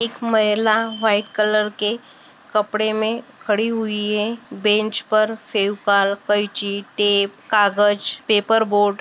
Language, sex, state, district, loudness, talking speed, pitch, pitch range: Hindi, female, Maharashtra, Sindhudurg, -19 LUFS, 125 wpm, 210 Hz, 205-220 Hz